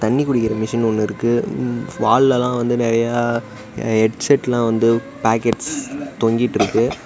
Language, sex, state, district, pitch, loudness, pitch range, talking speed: Tamil, male, Tamil Nadu, Namakkal, 115 Hz, -18 LUFS, 115-125 Hz, 110 wpm